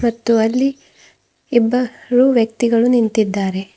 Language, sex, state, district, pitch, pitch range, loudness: Kannada, female, Karnataka, Bidar, 235 Hz, 220-245 Hz, -16 LUFS